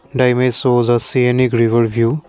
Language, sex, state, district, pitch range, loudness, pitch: English, male, Assam, Kamrup Metropolitan, 115-125 Hz, -14 LUFS, 125 Hz